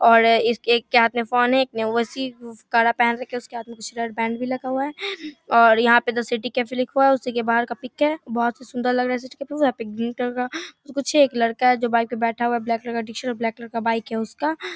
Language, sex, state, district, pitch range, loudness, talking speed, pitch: Hindi, female, Bihar, Darbhanga, 230-255 Hz, -21 LUFS, 255 wpm, 240 Hz